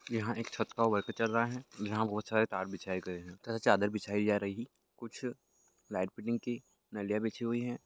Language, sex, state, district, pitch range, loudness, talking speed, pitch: Hindi, male, Bihar, Lakhisarai, 100-115 Hz, -35 LUFS, 215 wpm, 110 Hz